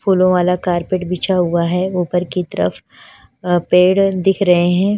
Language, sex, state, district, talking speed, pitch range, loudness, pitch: Hindi, female, Punjab, Fazilka, 170 wpm, 175-185 Hz, -16 LUFS, 180 Hz